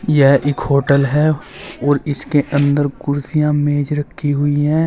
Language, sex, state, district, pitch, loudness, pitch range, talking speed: Hindi, male, Uttar Pradesh, Saharanpur, 145 Hz, -16 LUFS, 140-150 Hz, 150 wpm